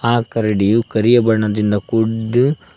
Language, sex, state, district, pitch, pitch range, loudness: Kannada, male, Karnataka, Koppal, 115 Hz, 105-120 Hz, -16 LUFS